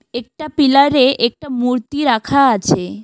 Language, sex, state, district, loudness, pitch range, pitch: Bengali, female, West Bengal, Alipurduar, -14 LUFS, 235-280 Hz, 260 Hz